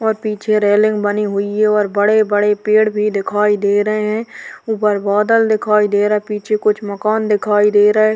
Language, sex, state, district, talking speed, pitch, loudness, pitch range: Hindi, female, Uttar Pradesh, Varanasi, 215 wpm, 210 Hz, -15 LUFS, 205-215 Hz